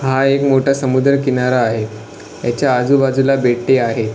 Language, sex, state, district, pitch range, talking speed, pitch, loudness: Marathi, male, Maharashtra, Sindhudurg, 120-135 Hz, 145 wpm, 130 Hz, -15 LUFS